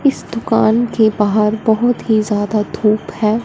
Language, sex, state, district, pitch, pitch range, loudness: Hindi, female, Punjab, Fazilka, 215 Hz, 210-225 Hz, -15 LUFS